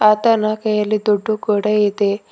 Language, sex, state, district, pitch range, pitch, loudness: Kannada, female, Karnataka, Bidar, 210-215 Hz, 210 Hz, -17 LUFS